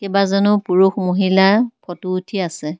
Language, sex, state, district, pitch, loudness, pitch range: Assamese, female, Assam, Kamrup Metropolitan, 190 Hz, -17 LUFS, 185-200 Hz